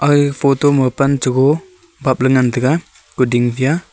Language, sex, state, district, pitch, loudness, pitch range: Wancho, male, Arunachal Pradesh, Longding, 140 Hz, -15 LUFS, 130-145 Hz